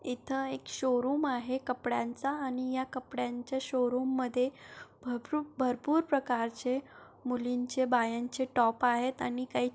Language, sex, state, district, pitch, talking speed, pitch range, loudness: Marathi, male, Maharashtra, Sindhudurg, 250 Hz, 135 wpm, 245-265 Hz, -32 LUFS